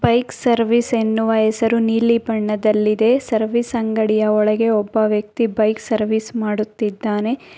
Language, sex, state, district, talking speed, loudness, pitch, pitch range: Kannada, female, Karnataka, Bangalore, 110 wpm, -18 LUFS, 220 Hz, 215-230 Hz